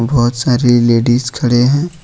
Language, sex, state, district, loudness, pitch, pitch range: Hindi, male, Jharkhand, Ranchi, -12 LUFS, 120 Hz, 120-130 Hz